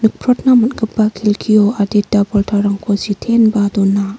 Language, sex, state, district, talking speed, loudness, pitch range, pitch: Garo, female, Meghalaya, North Garo Hills, 100 wpm, -14 LUFS, 205-220 Hz, 210 Hz